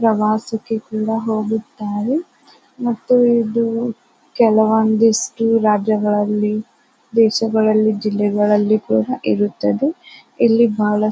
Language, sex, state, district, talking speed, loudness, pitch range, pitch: Kannada, female, Karnataka, Bijapur, 75 wpm, -17 LUFS, 210-230 Hz, 220 Hz